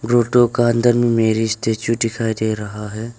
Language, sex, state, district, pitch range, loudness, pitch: Hindi, male, Arunachal Pradesh, Longding, 110-120 Hz, -18 LUFS, 115 Hz